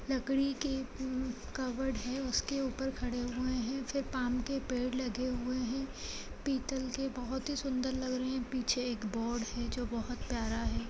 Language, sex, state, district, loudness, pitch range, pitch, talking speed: Hindi, female, Chhattisgarh, Kabirdham, -36 LUFS, 245-265 Hz, 255 Hz, 180 wpm